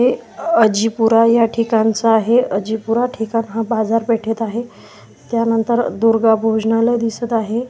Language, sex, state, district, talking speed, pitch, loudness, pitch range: Marathi, male, Maharashtra, Washim, 115 wpm, 225 Hz, -16 LUFS, 225-235 Hz